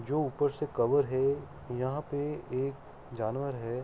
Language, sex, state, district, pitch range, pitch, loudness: Hindi, male, Uttar Pradesh, Hamirpur, 125-145 Hz, 140 Hz, -32 LUFS